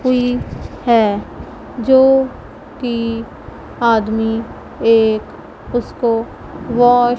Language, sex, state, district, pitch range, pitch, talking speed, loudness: Hindi, female, Punjab, Pathankot, 225-245 Hz, 235 Hz, 75 wpm, -16 LUFS